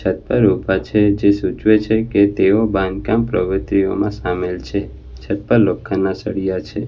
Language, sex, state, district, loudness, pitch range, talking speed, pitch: Gujarati, male, Gujarat, Valsad, -17 LUFS, 95-105 Hz, 155 wpm, 95 Hz